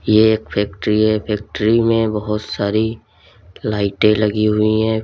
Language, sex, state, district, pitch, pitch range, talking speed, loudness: Hindi, male, Uttar Pradesh, Lalitpur, 105 Hz, 105-110 Hz, 130 wpm, -17 LUFS